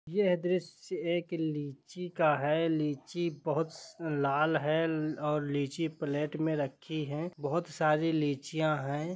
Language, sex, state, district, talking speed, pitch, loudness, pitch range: Hindi, male, Jharkhand, Sahebganj, 135 wpm, 155 Hz, -32 LUFS, 150-165 Hz